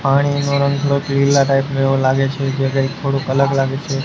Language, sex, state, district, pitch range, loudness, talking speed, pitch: Gujarati, male, Gujarat, Gandhinagar, 135-140 Hz, -16 LUFS, 220 wpm, 135 Hz